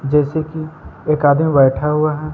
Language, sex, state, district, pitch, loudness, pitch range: Hindi, male, Madhya Pradesh, Umaria, 150 Hz, -16 LUFS, 145-155 Hz